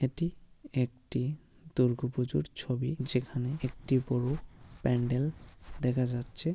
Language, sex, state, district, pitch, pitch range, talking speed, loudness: Bengali, female, West Bengal, Malda, 130 Hz, 125-140 Hz, 100 wpm, -33 LUFS